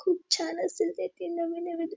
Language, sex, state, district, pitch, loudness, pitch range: Marathi, female, Maharashtra, Dhule, 345 Hz, -30 LUFS, 335-365 Hz